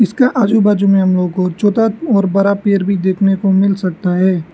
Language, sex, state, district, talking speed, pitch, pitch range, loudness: Hindi, male, Arunachal Pradesh, Lower Dibang Valley, 225 wpm, 195 Hz, 185-205 Hz, -13 LUFS